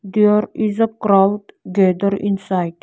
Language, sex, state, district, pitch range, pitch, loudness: English, female, Arunachal Pradesh, Lower Dibang Valley, 195-210 Hz, 200 Hz, -17 LUFS